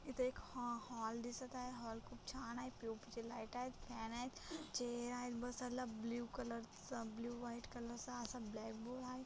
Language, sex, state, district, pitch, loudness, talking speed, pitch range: Marathi, female, Maharashtra, Solapur, 240 Hz, -48 LUFS, 190 wpm, 230-250 Hz